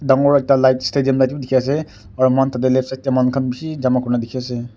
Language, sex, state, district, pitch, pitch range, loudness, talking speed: Nagamese, male, Nagaland, Kohima, 130 Hz, 125-135 Hz, -17 LUFS, 250 wpm